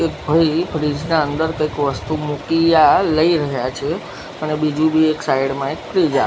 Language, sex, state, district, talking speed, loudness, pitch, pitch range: Gujarati, male, Gujarat, Gandhinagar, 200 wpm, -18 LUFS, 155 Hz, 150-160 Hz